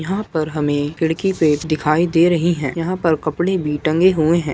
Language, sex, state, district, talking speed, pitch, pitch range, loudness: Hindi, male, Uttar Pradesh, Muzaffarnagar, 210 wpm, 160 Hz, 155-175 Hz, -18 LUFS